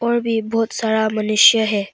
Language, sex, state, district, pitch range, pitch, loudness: Hindi, female, Arunachal Pradesh, Papum Pare, 215-225 Hz, 220 Hz, -16 LUFS